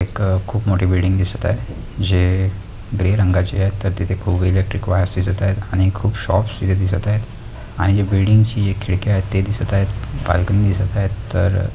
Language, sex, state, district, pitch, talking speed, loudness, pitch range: Marathi, male, Maharashtra, Aurangabad, 100 Hz, 195 wpm, -18 LUFS, 95-105 Hz